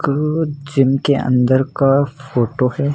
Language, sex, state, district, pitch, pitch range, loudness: Hindi, male, Rajasthan, Jaisalmer, 135 Hz, 130-145 Hz, -16 LUFS